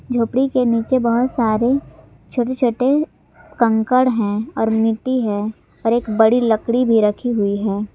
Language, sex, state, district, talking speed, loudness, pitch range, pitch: Hindi, female, Jharkhand, Garhwa, 150 wpm, -18 LUFS, 220-255 Hz, 235 Hz